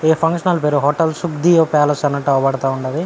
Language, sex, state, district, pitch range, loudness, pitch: Telugu, male, Andhra Pradesh, Anantapur, 140-165 Hz, -16 LUFS, 150 Hz